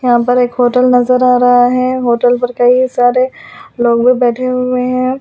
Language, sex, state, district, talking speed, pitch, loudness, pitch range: Hindi, female, Delhi, New Delhi, 195 wpm, 250 Hz, -11 LUFS, 245-255 Hz